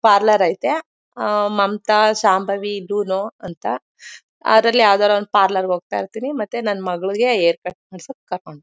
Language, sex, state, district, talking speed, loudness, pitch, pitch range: Kannada, female, Karnataka, Mysore, 140 wpm, -18 LUFS, 205 Hz, 185-215 Hz